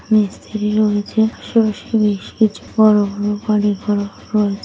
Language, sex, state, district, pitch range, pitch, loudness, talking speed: Bengali, female, West Bengal, Paschim Medinipur, 205-215 Hz, 210 Hz, -17 LUFS, 130 wpm